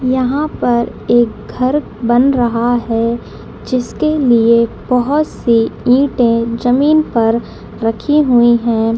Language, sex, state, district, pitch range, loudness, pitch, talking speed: Hindi, female, Bihar, Madhepura, 230-260 Hz, -14 LUFS, 240 Hz, 115 wpm